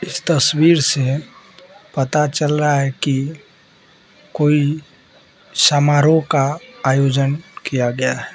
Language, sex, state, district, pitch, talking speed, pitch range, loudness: Hindi, male, Mizoram, Aizawl, 145 Hz, 110 wpm, 135-160 Hz, -17 LUFS